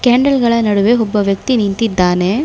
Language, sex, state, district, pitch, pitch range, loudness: Kannada, female, Karnataka, Bangalore, 225 Hz, 200-245 Hz, -13 LUFS